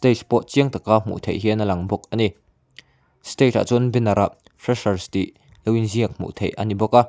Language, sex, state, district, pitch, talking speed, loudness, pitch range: Mizo, male, Mizoram, Aizawl, 110 Hz, 230 wpm, -21 LUFS, 100-120 Hz